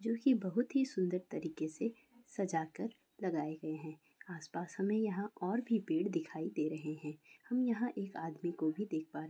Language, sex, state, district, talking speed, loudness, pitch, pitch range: Hindi, female, Bihar, Sitamarhi, 185 wpm, -38 LUFS, 185 Hz, 155-230 Hz